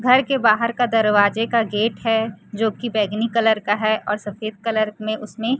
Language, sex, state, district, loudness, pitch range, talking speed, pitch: Hindi, female, Chhattisgarh, Raipur, -20 LUFS, 215-230 Hz, 215 wpm, 220 Hz